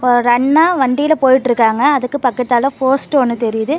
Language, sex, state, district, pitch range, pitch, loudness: Tamil, female, Tamil Nadu, Namakkal, 245-280 Hz, 260 Hz, -13 LUFS